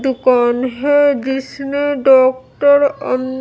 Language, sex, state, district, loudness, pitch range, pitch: Hindi, female, Bihar, Katihar, -14 LUFS, 255-285 Hz, 265 Hz